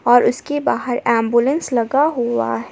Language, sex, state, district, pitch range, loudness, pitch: Hindi, female, Jharkhand, Palamu, 235-270 Hz, -17 LUFS, 245 Hz